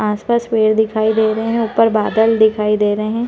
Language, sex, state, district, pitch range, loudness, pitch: Hindi, female, Uttar Pradesh, Varanasi, 215-225 Hz, -15 LUFS, 220 Hz